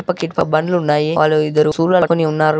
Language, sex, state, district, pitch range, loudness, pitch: Telugu, male, Andhra Pradesh, Chittoor, 155-165 Hz, -15 LUFS, 155 Hz